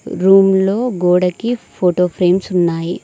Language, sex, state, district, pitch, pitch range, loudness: Telugu, female, Telangana, Mahabubabad, 185 Hz, 180-195 Hz, -14 LUFS